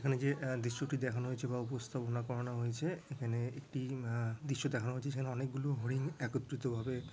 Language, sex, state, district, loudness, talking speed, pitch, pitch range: Bengali, male, West Bengal, Dakshin Dinajpur, -39 LUFS, 170 wpm, 130 Hz, 120-140 Hz